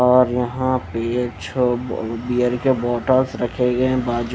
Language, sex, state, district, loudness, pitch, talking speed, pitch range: Hindi, male, Delhi, New Delhi, -20 LUFS, 125 Hz, 180 wpm, 120-125 Hz